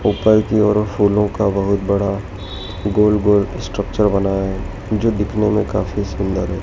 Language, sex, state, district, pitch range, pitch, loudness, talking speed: Hindi, male, Madhya Pradesh, Dhar, 95-105 Hz, 100 Hz, -17 LUFS, 145 wpm